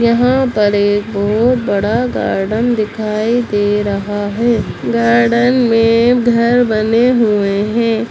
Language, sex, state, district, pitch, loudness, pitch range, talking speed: Hindi, female, Bihar, Begusarai, 225 Hz, -13 LUFS, 205-240 Hz, 125 wpm